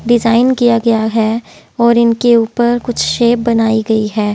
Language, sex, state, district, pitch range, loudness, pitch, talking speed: Hindi, female, Haryana, Jhajjar, 225-240 Hz, -12 LUFS, 235 Hz, 165 wpm